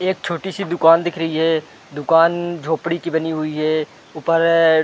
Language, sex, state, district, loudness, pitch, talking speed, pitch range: Hindi, male, Chhattisgarh, Rajnandgaon, -18 LUFS, 165 Hz, 185 wpm, 160-170 Hz